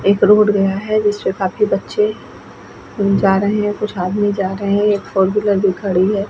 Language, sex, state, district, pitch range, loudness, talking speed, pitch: Hindi, female, Bihar, Vaishali, 195-210 Hz, -16 LUFS, 210 wpm, 200 Hz